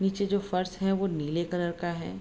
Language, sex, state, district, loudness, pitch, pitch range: Hindi, female, Bihar, Araria, -30 LUFS, 180 Hz, 170-195 Hz